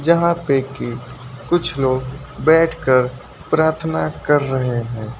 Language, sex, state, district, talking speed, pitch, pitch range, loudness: Hindi, male, Uttar Pradesh, Lucknow, 115 wpm, 135 Hz, 125-160 Hz, -18 LUFS